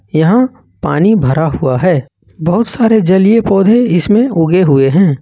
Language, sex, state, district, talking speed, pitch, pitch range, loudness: Hindi, male, Jharkhand, Ranchi, 150 wpm, 185 Hz, 155-220 Hz, -11 LUFS